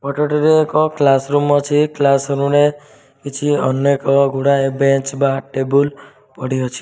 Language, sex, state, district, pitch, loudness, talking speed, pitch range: Odia, male, Odisha, Malkangiri, 140 Hz, -16 LUFS, 140 wpm, 135-145 Hz